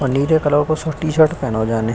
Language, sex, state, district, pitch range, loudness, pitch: Hindi, male, Uttar Pradesh, Hamirpur, 120-155 Hz, -17 LUFS, 145 Hz